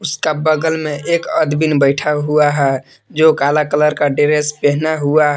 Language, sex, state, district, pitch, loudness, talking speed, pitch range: Hindi, male, Jharkhand, Palamu, 150 Hz, -15 LUFS, 180 wpm, 145-155 Hz